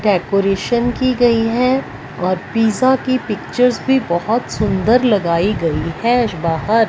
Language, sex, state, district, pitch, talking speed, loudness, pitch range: Hindi, female, Punjab, Fazilka, 225 Hz, 140 wpm, -16 LUFS, 185-245 Hz